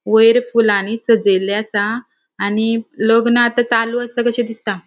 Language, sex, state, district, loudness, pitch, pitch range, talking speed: Konkani, female, Goa, North and South Goa, -16 LUFS, 230 Hz, 210-240 Hz, 135 wpm